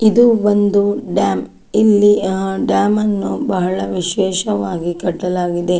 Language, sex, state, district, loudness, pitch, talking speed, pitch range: Kannada, female, Karnataka, Dakshina Kannada, -16 LUFS, 200 Hz, 95 wpm, 180-210 Hz